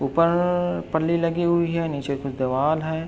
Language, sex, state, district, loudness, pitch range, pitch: Hindi, male, Uttar Pradesh, Varanasi, -23 LUFS, 140-170 Hz, 165 Hz